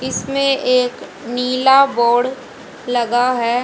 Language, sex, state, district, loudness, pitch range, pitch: Hindi, female, Haryana, Jhajjar, -16 LUFS, 245-260 Hz, 250 Hz